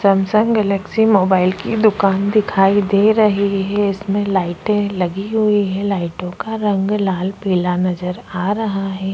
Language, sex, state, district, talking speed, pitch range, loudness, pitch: Hindi, female, Chhattisgarh, Korba, 155 wpm, 190-210 Hz, -17 LUFS, 195 Hz